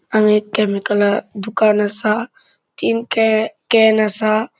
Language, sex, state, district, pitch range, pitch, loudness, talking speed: Konkani, male, Goa, North and South Goa, 210-225 Hz, 215 Hz, -16 LUFS, 115 wpm